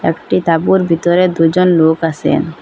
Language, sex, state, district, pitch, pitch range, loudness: Bengali, female, Assam, Hailakandi, 165 Hz, 165-180 Hz, -13 LUFS